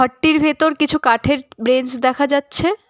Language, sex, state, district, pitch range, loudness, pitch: Bengali, female, West Bengal, Cooch Behar, 255-310 Hz, -16 LUFS, 285 Hz